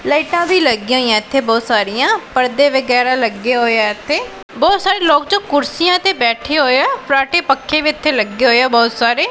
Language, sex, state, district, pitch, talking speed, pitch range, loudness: Punjabi, female, Punjab, Pathankot, 270 Hz, 200 wpm, 235-305 Hz, -14 LUFS